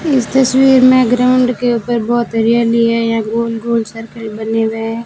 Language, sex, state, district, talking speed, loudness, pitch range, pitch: Hindi, female, Rajasthan, Jaisalmer, 190 wpm, -13 LUFS, 225-250 Hz, 230 Hz